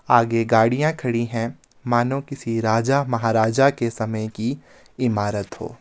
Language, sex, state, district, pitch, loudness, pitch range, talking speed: Hindi, male, Himachal Pradesh, Shimla, 120 Hz, -21 LUFS, 115-130 Hz, 135 wpm